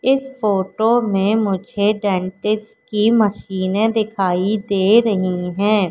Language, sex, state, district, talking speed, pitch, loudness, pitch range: Hindi, female, Madhya Pradesh, Katni, 110 wpm, 210 Hz, -18 LUFS, 190-220 Hz